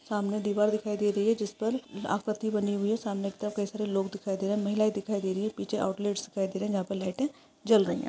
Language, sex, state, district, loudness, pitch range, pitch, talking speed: Hindi, female, Maharashtra, Pune, -30 LUFS, 200-215 Hz, 205 Hz, 260 wpm